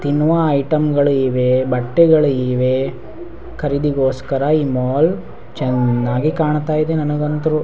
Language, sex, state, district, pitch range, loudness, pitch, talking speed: Kannada, male, Karnataka, Raichur, 130-155 Hz, -16 LUFS, 145 Hz, 100 wpm